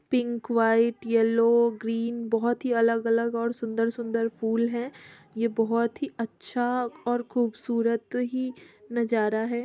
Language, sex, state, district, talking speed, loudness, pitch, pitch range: Hindi, female, Bihar, Muzaffarpur, 125 wpm, -26 LUFS, 230 Hz, 230-240 Hz